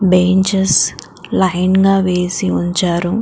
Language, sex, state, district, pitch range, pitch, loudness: Telugu, female, Telangana, Karimnagar, 180-190 Hz, 185 Hz, -14 LUFS